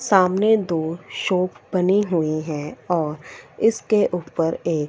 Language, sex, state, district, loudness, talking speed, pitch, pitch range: Hindi, female, Punjab, Fazilka, -21 LUFS, 125 wpm, 175 Hz, 160-195 Hz